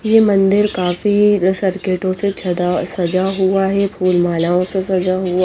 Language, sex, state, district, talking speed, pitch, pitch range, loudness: Hindi, female, Chandigarh, Chandigarh, 165 wpm, 185 Hz, 180-200 Hz, -16 LUFS